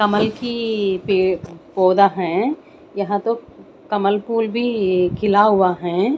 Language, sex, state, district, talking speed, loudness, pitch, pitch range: Hindi, female, Maharashtra, Mumbai Suburban, 125 wpm, -19 LUFS, 205 Hz, 185-225 Hz